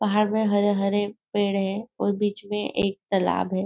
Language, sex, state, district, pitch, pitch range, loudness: Hindi, female, Maharashtra, Nagpur, 205 Hz, 200-210 Hz, -25 LUFS